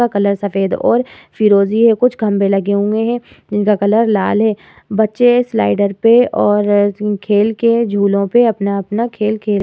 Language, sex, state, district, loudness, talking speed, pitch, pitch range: Hindi, female, Uttar Pradesh, Muzaffarnagar, -14 LUFS, 160 wpm, 210 Hz, 200-230 Hz